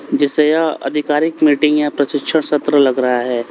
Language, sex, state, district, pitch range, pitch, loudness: Hindi, male, Uttar Pradesh, Lalitpur, 140-150 Hz, 150 Hz, -15 LUFS